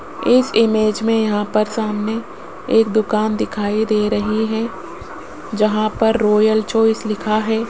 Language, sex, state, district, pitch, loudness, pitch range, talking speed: Hindi, female, Rajasthan, Jaipur, 220 Hz, -17 LUFS, 215-225 Hz, 140 wpm